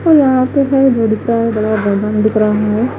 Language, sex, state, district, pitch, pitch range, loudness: Hindi, female, Haryana, Jhajjar, 225 Hz, 215-260 Hz, -13 LUFS